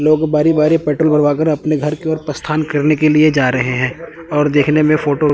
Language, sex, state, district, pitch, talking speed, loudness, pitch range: Hindi, male, Chandigarh, Chandigarh, 150 Hz, 245 wpm, -14 LUFS, 150-155 Hz